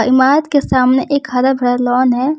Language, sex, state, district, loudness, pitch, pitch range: Hindi, female, Jharkhand, Ranchi, -13 LUFS, 260 Hz, 250-280 Hz